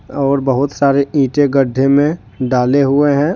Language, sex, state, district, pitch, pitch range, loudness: Hindi, male, Jharkhand, Deoghar, 140 Hz, 135-145 Hz, -14 LUFS